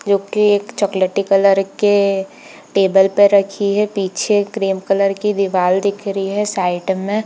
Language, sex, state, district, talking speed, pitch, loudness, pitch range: Hindi, female, Jharkhand, Sahebganj, 155 wpm, 200 Hz, -16 LUFS, 195-205 Hz